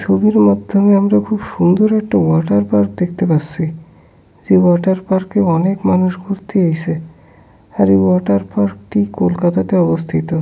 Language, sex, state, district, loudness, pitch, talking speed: Bengali, male, West Bengal, Kolkata, -14 LUFS, 165 Hz, 145 wpm